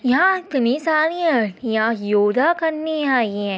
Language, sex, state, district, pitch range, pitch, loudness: Hindi, female, Uttar Pradesh, Etah, 220-320 Hz, 260 Hz, -19 LUFS